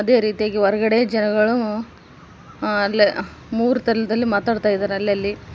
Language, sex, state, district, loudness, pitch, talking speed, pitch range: Kannada, female, Karnataka, Koppal, -19 LUFS, 215 Hz, 110 wpm, 205-230 Hz